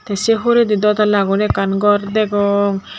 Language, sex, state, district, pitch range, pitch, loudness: Chakma, female, Tripura, Dhalai, 200-215 Hz, 205 Hz, -15 LUFS